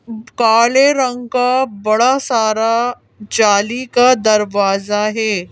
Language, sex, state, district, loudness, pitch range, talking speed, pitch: Hindi, female, Madhya Pradesh, Bhopal, -14 LUFS, 215-250 Hz, 100 wpm, 225 Hz